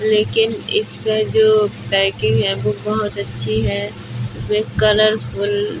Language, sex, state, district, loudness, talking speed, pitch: Hindi, female, Uttar Pradesh, Budaun, -18 LUFS, 125 wpm, 195 Hz